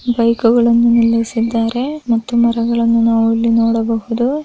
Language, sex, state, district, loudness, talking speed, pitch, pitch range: Kannada, female, Karnataka, Raichur, -14 LUFS, 95 wpm, 230 Hz, 230-235 Hz